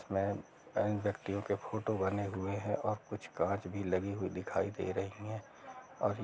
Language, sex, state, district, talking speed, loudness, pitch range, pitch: Hindi, male, Chhattisgarh, Rajnandgaon, 190 wpm, -37 LUFS, 95-105 Hz, 100 Hz